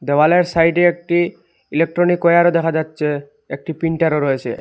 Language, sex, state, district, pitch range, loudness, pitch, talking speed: Bengali, male, Assam, Hailakandi, 150-175 Hz, -16 LUFS, 165 Hz, 115 wpm